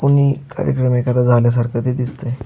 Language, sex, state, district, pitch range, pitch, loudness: Marathi, male, Maharashtra, Aurangabad, 120-135 Hz, 125 Hz, -16 LUFS